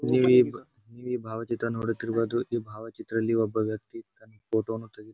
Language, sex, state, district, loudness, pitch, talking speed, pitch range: Kannada, male, Karnataka, Bijapur, -28 LUFS, 115 Hz, 140 wpm, 110-115 Hz